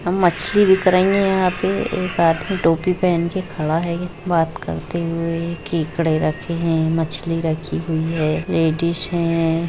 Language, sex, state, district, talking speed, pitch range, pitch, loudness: Hindi, female, Jharkhand, Jamtara, 160 wpm, 160-180 Hz, 165 Hz, -19 LUFS